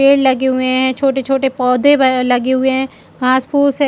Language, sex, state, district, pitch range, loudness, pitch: Hindi, female, Chhattisgarh, Bilaspur, 255-275 Hz, -14 LUFS, 265 Hz